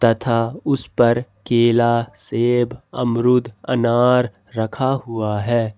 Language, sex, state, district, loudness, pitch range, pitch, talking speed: Hindi, male, Jharkhand, Ranchi, -19 LUFS, 115-125 Hz, 120 Hz, 105 wpm